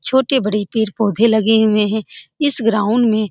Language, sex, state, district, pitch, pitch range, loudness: Hindi, female, Bihar, Saran, 220 Hz, 210-235 Hz, -15 LUFS